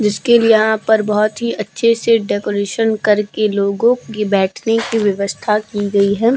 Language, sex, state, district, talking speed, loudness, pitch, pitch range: Hindi, female, Uttar Pradesh, Hamirpur, 170 wpm, -15 LUFS, 215 Hz, 205-225 Hz